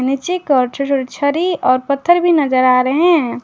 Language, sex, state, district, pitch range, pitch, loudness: Hindi, female, Jharkhand, Garhwa, 255-335 Hz, 275 Hz, -14 LUFS